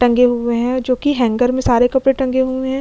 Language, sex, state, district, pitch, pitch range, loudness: Hindi, female, Chhattisgarh, Kabirdham, 255 Hz, 240-260 Hz, -16 LUFS